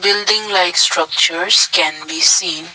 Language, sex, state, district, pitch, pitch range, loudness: English, male, Assam, Kamrup Metropolitan, 200 Hz, 175-210 Hz, -13 LUFS